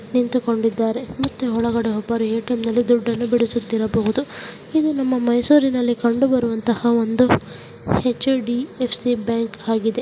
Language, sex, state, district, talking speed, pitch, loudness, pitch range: Kannada, female, Karnataka, Mysore, 90 wpm, 240 Hz, -20 LUFS, 230-250 Hz